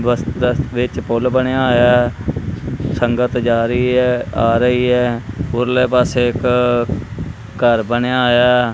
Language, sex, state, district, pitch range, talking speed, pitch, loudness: Punjabi, male, Punjab, Kapurthala, 115-125 Hz, 115 wpm, 120 Hz, -16 LUFS